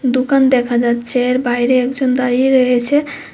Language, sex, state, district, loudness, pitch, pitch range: Bengali, female, Tripura, West Tripura, -14 LUFS, 255 Hz, 245-260 Hz